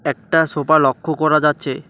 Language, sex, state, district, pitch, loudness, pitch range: Bengali, male, West Bengal, Alipurduar, 155 Hz, -16 LUFS, 145-160 Hz